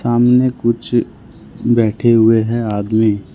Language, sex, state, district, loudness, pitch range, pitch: Hindi, male, Jharkhand, Ranchi, -14 LUFS, 110-120 Hz, 115 Hz